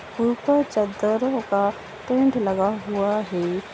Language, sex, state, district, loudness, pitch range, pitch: Bhojpuri, female, Bihar, Saran, -23 LUFS, 200-235 Hz, 210 Hz